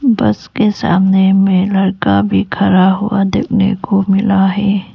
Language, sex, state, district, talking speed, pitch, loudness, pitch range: Hindi, female, Arunachal Pradesh, Lower Dibang Valley, 145 wpm, 195 Hz, -13 LUFS, 190-200 Hz